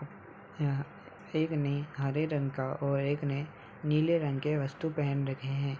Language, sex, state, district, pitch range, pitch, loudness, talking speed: Hindi, male, Uttar Pradesh, Ghazipur, 140-150 Hz, 140 Hz, -32 LUFS, 165 wpm